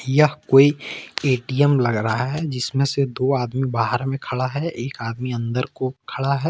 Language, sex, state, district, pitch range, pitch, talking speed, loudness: Hindi, male, Jharkhand, Ranchi, 125-140 Hz, 130 Hz, 195 wpm, -21 LUFS